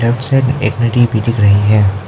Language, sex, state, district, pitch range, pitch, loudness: Hindi, male, Arunachal Pradesh, Lower Dibang Valley, 105-120 Hz, 115 Hz, -12 LUFS